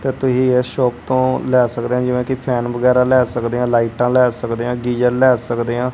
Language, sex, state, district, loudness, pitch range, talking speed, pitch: Punjabi, male, Punjab, Kapurthala, -16 LUFS, 120-125 Hz, 230 wpm, 125 Hz